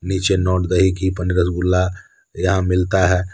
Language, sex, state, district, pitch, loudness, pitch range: Hindi, male, Jharkhand, Deoghar, 90 Hz, -18 LUFS, 90-95 Hz